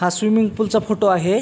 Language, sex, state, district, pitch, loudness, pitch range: Marathi, male, Maharashtra, Pune, 215 Hz, -18 LUFS, 190-220 Hz